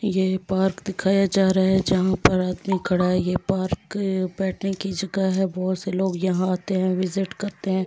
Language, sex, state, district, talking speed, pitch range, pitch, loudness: Hindi, female, Delhi, New Delhi, 200 wpm, 185-195 Hz, 190 Hz, -23 LUFS